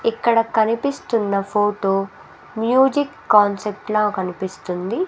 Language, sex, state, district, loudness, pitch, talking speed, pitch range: Telugu, female, Andhra Pradesh, Sri Satya Sai, -19 LUFS, 210 Hz, 85 wpm, 195-230 Hz